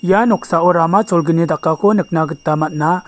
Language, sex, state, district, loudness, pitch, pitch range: Garo, male, Meghalaya, West Garo Hills, -15 LUFS, 170 Hz, 160-190 Hz